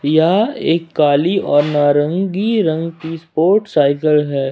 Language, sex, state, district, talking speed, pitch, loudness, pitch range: Hindi, male, Jharkhand, Ranchi, 135 wpm, 160 Hz, -15 LUFS, 145-180 Hz